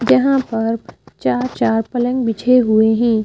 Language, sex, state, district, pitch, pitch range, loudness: Hindi, female, Madhya Pradesh, Bhopal, 225 Hz, 220-250 Hz, -16 LUFS